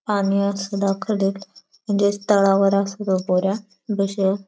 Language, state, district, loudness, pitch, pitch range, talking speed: Bhili, Maharashtra, Dhule, -21 LUFS, 200 Hz, 195-205 Hz, 105 wpm